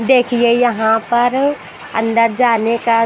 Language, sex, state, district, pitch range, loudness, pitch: Hindi, female, Bihar, Patna, 230-245 Hz, -14 LUFS, 235 Hz